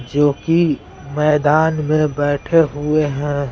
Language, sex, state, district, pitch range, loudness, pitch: Hindi, male, Bihar, Patna, 145-155 Hz, -17 LUFS, 150 Hz